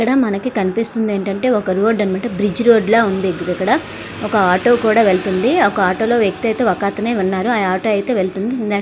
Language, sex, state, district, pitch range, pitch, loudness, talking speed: Telugu, female, Andhra Pradesh, Srikakulam, 190-230 Hz, 205 Hz, -16 LUFS, 195 wpm